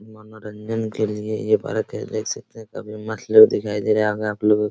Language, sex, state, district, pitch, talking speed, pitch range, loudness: Hindi, male, Bihar, Araria, 110 Hz, 205 wpm, 105-110 Hz, -21 LUFS